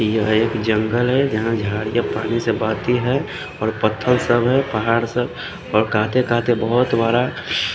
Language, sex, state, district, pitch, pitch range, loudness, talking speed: Hindi, male, Odisha, Khordha, 115 Hz, 110-125 Hz, -19 LUFS, 165 wpm